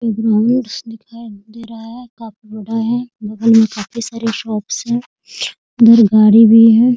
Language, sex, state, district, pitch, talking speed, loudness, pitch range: Hindi, female, Bihar, Muzaffarpur, 225 Hz, 165 wpm, -13 LUFS, 220-235 Hz